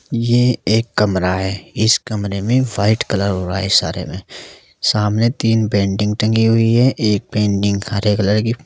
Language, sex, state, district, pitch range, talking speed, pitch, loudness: Hindi, male, Uttar Pradesh, Saharanpur, 100-115 Hz, 165 wpm, 105 Hz, -16 LUFS